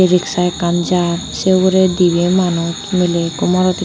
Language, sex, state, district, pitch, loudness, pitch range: Chakma, female, Tripura, Unakoti, 180 Hz, -15 LUFS, 175-185 Hz